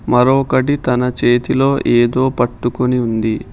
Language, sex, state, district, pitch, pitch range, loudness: Telugu, male, Telangana, Hyderabad, 125 Hz, 120-130 Hz, -15 LUFS